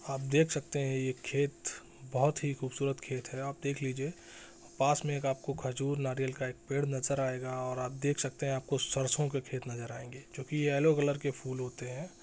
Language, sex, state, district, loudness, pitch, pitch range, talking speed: Hindi, male, Bihar, Jahanabad, -34 LUFS, 135 Hz, 130-145 Hz, 220 wpm